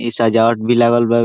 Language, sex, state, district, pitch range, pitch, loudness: Bhojpuri, male, Bihar, Saran, 115-120 Hz, 115 Hz, -14 LUFS